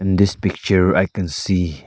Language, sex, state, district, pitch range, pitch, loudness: English, male, Arunachal Pradesh, Lower Dibang Valley, 90-100 Hz, 95 Hz, -18 LUFS